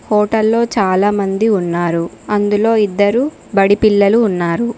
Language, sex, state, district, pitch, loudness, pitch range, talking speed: Telugu, female, Telangana, Mahabubabad, 205 Hz, -14 LUFS, 195-220 Hz, 100 wpm